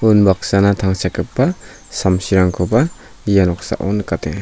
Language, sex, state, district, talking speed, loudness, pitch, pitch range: Garo, male, Meghalaya, South Garo Hills, 80 wpm, -16 LUFS, 95 Hz, 90-105 Hz